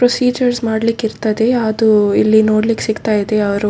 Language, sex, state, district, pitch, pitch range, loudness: Kannada, female, Karnataka, Dakshina Kannada, 220 Hz, 215-230 Hz, -14 LUFS